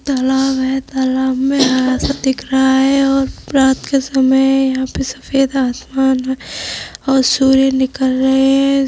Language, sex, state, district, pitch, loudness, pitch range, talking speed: Hindi, female, Uttar Pradesh, Budaun, 265 Hz, -14 LUFS, 260-270 Hz, 160 wpm